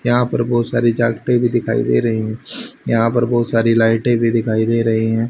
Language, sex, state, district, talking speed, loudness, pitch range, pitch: Hindi, male, Haryana, Charkhi Dadri, 225 wpm, -16 LUFS, 115-120 Hz, 115 Hz